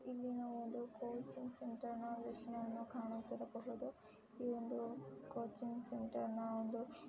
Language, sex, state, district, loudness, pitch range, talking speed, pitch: Kannada, female, Karnataka, Dharwad, -47 LUFS, 225-240 Hz, 120 wpm, 235 Hz